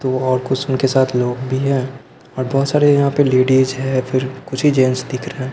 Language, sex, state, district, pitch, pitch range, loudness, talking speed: Hindi, male, Bihar, Patna, 130 Hz, 130-135 Hz, -17 LUFS, 240 wpm